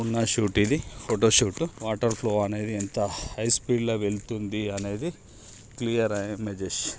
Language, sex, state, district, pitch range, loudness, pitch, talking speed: Telugu, male, Andhra Pradesh, Srikakulam, 105-115 Hz, -26 LUFS, 110 Hz, 130 wpm